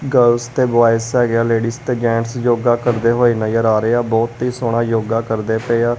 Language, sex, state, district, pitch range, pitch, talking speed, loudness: Punjabi, male, Punjab, Kapurthala, 115-120 Hz, 115 Hz, 220 wpm, -16 LUFS